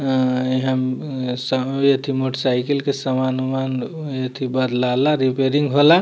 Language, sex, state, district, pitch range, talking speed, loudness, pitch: Bhojpuri, male, Bihar, Muzaffarpur, 130-140 Hz, 120 wpm, -20 LUFS, 130 Hz